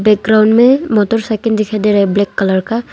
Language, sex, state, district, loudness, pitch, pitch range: Hindi, female, Arunachal Pradesh, Longding, -12 LUFS, 215 Hz, 205-225 Hz